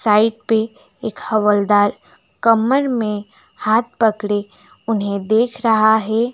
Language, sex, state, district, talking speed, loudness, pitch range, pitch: Hindi, female, West Bengal, Alipurduar, 115 wpm, -17 LUFS, 210-230 Hz, 220 Hz